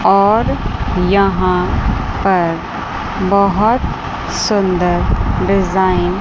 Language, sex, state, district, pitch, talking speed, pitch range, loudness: Hindi, female, Chandigarh, Chandigarh, 190 Hz, 65 wpm, 180-200 Hz, -15 LUFS